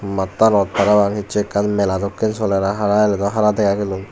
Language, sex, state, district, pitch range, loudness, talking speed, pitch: Chakma, male, Tripura, Unakoti, 100-105 Hz, -17 LUFS, 175 wpm, 100 Hz